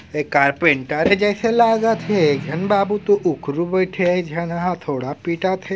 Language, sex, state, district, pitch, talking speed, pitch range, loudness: Chhattisgarhi, male, Chhattisgarh, Raigarh, 180 Hz, 190 wpm, 155-200 Hz, -19 LUFS